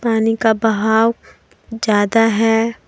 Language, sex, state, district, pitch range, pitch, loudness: Hindi, female, Jharkhand, Deoghar, 220-225 Hz, 225 Hz, -15 LUFS